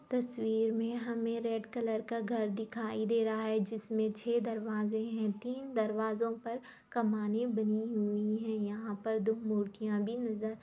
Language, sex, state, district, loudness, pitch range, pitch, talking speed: Hindi, female, Jharkhand, Sahebganj, -35 LUFS, 215-230 Hz, 220 Hz, 165 wpm